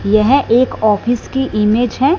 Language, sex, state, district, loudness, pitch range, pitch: Hindi, female, Punjab, Fazilka, -14 LUFS, 215-265 Hz, 240 Hz